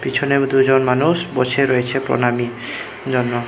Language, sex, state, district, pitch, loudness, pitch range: Bengali, male, Tripura, Unakoti, 130 Hz, -18 LUFS, 125-135 Hz